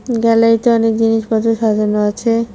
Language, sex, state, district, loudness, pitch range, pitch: Bengali, female, West Bengal, Cooch Behar, -14 LUFS, 220-230 Hz, 225 Hz